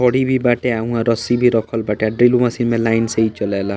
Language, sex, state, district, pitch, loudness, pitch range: Bhojpuri, male, Bihar, East Champaran, 115 Hz, -17 LUFS, 110-120 Hz